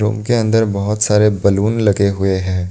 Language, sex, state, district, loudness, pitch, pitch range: Hindi, male, Assam, Kamrup Metropolitan, -15 LUFS, 105 Hz, 100-105 Hz